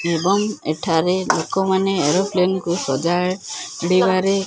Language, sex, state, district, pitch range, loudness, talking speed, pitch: Odia, male, Odisha, Khordha, 170-190 Hz, -19 LUFS, 95 wpm, 185 Hz